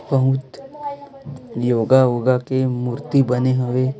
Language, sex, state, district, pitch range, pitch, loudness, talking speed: Hindi, female, Chhattisgarh, Raipur, 125-140 Hz, 130 Hz, -19 LUFS, 105 wpm